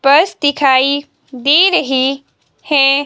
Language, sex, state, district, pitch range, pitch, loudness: Hindi, female, Himachal Pradesh, Shimla, 270-295 Hz, 280 Hz, -12 LUFS